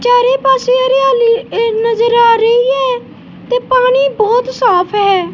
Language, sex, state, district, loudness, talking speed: Punjabi, female, Punjab, Kapurthala, -11 LUFS, 135 wpm